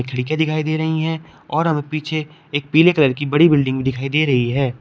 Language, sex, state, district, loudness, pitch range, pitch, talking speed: Hindi, male, Uttar Pradesh, Shamli, -18 LUFS, 135-160 Hz, 155 Hz, 210 wpm